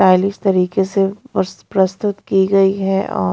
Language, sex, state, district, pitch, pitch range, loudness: Hindi, female, Punjab, Pathankot, 195 Hz, 190-195 Hz, -17 LUFS